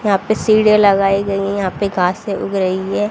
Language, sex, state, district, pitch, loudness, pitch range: Hindi, female, Haryana, Jhajjar, 200 Hz, -15 LUFS, 195-210 Hz